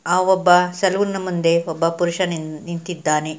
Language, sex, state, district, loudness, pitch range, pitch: Kannada, female, Karnataka, Mysore, -19 LUFS, 165-185 Hz, 175 Hz